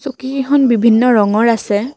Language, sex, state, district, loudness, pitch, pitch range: Assamese, female, Assam, Kamrup Metropolitan, -13 LUFS, 235 Hz, 225-270 Hz